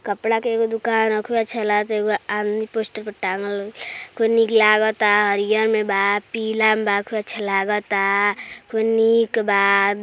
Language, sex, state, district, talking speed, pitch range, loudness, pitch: Hindi, male, Uttar Pradesh, Deoria, 170 wpm, 205-225 Hz, -19 LUFS, 215 Hz